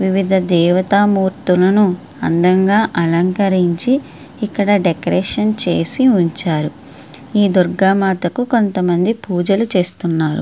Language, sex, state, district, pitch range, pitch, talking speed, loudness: Telugu, female, Andhra Pradesh, Srikakulam, 175-205 Hz, 185 Hz, 75 wpm, -15 LUFS